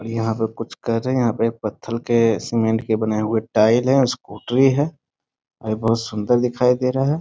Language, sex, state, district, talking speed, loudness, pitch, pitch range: Hindi, male, Bihar, East Champaran, 210 wpm, -20 LUFS, 115 Hz, 110-125 Hz